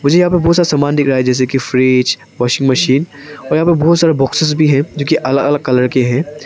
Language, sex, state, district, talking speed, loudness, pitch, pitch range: Hindi, male, Arunachal Pradesh, Papum Pare, 270 wpm, -13 LUFS, 140 Hz, 130-155 Hz